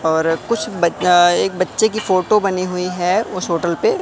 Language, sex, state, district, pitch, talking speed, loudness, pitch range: Hindi, male, Madhya Pradesh, Katni, 185 Hz, 195 wpm, -17 LUFS, 175-210 Hz